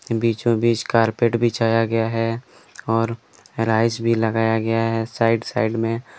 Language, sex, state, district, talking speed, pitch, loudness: Hindi, male, Jharkhand, Deoghar, 145 wpm, 115 Hz, -20 LUFS